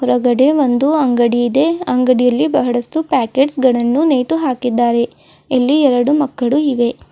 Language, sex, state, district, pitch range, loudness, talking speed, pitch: Kannada, female, Karnataka, Bidar, 245-290 Hz, -14 LUFS, 110 wpm, 255 Hz